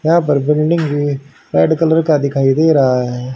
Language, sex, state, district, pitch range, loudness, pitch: Hindi, male, Haryana, Charkhi Dadri, 135-160 Hz, -14 LUFS, 145 Hz